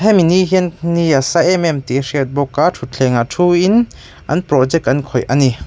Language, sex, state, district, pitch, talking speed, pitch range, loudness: Mizo, male, Mizoram, Aizawl, 150 Hz, 200 wpm, 135-180 Hz, -14 LUFS